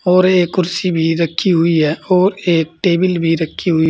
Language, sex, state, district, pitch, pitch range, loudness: Hindi, male, Uttar Pradesh, Saharanpur, 170 Hz, 165-185 Hz, -15 LUFS